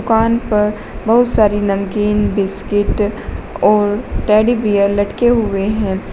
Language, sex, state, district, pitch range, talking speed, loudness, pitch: Hindi, female, Uttar Pradesh, Shamli, 205-220 Hz, 115 wpm, -15 LUFS, 210 Hz